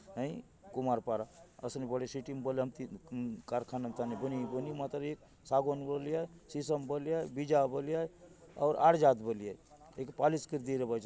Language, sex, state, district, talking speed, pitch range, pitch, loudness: Halbi, male, Chhattisgarh, Bastar, 175 wpm, 125-150 Hz, 140 Hz, -35 LUFS